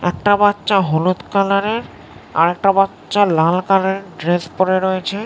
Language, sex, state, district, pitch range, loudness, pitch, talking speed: Bengali, male, West Bengal, North 24 Parganas, 175-200 Hz, -16 LUFS, 190 Hz, 150 wpm